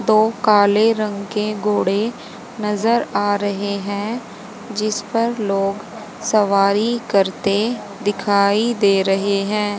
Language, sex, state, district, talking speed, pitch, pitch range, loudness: Hindi, female, Haryana, Charkhi Dadri, 110 wpm, 210 Hz, 200-220 Hz, -18 LUFS